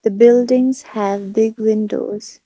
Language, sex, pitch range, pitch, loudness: English, female, 215-240 Hz, 220 Hz, -16 LUFS